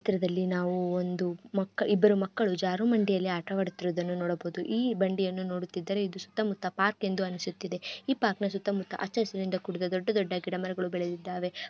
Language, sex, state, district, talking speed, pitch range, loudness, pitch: Kannada, female, Karnataka, Gulbarga, 160 wpm, 180-200 Hz, -31 LUFS, 185 Hz